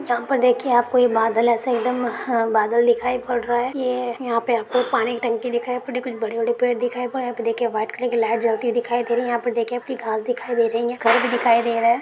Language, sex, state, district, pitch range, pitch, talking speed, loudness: Hindi, female, Jharkhand, Jamtara, 230-245 Hz, 240 Hz, 290 wpm, -21 LUFS